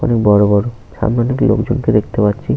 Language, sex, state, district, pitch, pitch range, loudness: Bengali, male, West Bengal, Paschim Medinipur, 110 Hz, 105-120 Hz, -14 LUFS